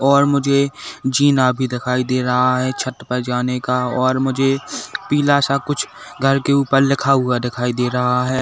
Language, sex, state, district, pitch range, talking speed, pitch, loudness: Hindi, male, Uttar Pradesh, Saharanpur, 125-140 Hz, 185 wpm, 130 Hz, -18 LUFS